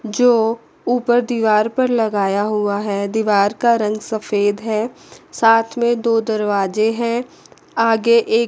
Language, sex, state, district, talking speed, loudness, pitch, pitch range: Hindi, female, Chandigarh, Chandigarh, 140 wpm, -17 LUFS, 225 Hz, 210-235 Hz